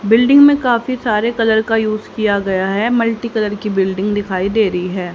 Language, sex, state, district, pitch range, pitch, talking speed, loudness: Hindi, female, Haryana, Jhajjar, 195-230 Hz, 215 Hz, 210 wpm, -15 LUFS